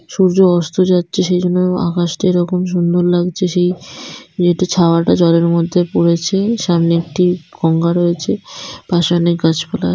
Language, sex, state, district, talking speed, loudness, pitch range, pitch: Bengali, female, West Bengal, Dakshin Dinajpur, 125 wpm, -14 LUFS, 170-180 Hz, 175 Hz